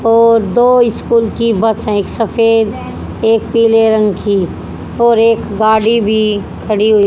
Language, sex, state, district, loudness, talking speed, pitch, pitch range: Hindi, female, Haryana, Rohtak, -12 LUFS, 145 wpm, 225 Hz, 215-230 Hz